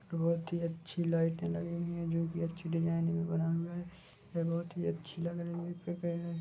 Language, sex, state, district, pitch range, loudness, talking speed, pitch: Hindi, male, Chhattisgarh, Bilaspur, 165-170 Hz, -36 LUFS, 205 wpm, 170 Hz